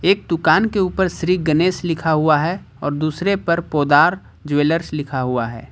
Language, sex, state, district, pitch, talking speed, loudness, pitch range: Hindi, male, Jharkhand, Ranchi, 165 Hz, 180 wpm, -18 LUFS, 150-180 Hz